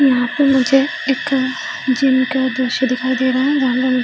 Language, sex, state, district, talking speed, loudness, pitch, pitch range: Hindi, female, Chhattisgarh, Bilaspur, 210 wpm, -16 LUFS, 260 Hz, 255-270 Hz